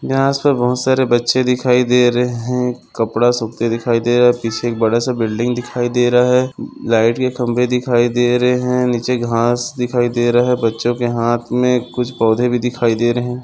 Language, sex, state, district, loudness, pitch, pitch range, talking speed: Hindi, male, Maharashtra, Sindhudurg, -16 LUFS, 120 Hz, 120-125 Hz, 210 wpm